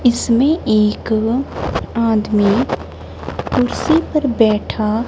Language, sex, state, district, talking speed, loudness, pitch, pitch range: Hindi, male, Punjab, Kapurthala, 70 wpm, -16 LUFS, 230 Hz, 215-255 Hz